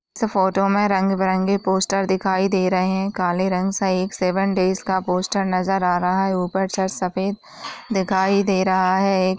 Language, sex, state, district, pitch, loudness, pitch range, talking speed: Hindi, female, Uttar Pradesh, Varanasi, 190 Hz, -20 LUFS, 185-195 Hz, 180 wpm